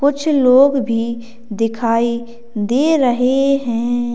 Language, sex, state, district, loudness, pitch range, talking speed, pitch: Hindi, female, Uttar Pradesh, Lalitpur, -16 LUFS, 235-270 Hz, 100 wpm, 240 Hz